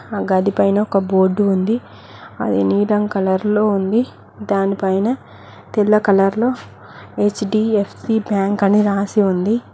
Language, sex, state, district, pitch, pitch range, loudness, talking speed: Telugu, female, Telangana, Mahabubabad, 205 Hz, 195-210 Hz, -17 LUFS, 110 wpm